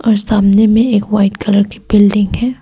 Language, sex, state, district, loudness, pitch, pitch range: Hindi, female, Arunachal Pradesh, Papum Pare, -12 LUFS, 210 Hz, 205-220 Hz